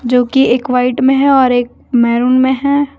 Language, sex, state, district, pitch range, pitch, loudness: Hindi, female, Jharkhand, Deoghar, 245-270 Hz, 255 Hz, -12 LUFS